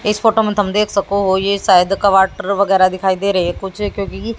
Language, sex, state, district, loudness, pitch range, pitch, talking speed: Hindi, female, Haryana, Jhajjar, -15 LUFS, 190-205 Hz, 200 Hz, 245 wpm